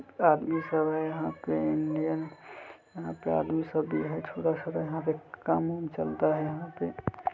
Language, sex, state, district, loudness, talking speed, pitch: Hindi, male, Bihar, Kishanganj, -31 LUFS, 155 wpm, 155 Hz